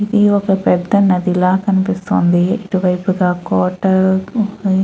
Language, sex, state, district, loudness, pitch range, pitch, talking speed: Telugu, female, Andhra Pradesh, Chittoor, -15 LUFS, 180-200 Hz, 190 Hz, 135 wpm